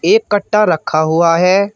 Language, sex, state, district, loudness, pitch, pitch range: Hindi, male, Uttar Pradesh, Shamli, -13 LUFS, 195 Hz, 165-210 Hz